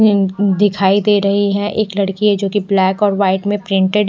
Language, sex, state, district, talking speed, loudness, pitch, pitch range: Hindi, male, Odisha, Nuapada, 220 wpm, -15 LUFS, 200 Hz, 195-205 Hz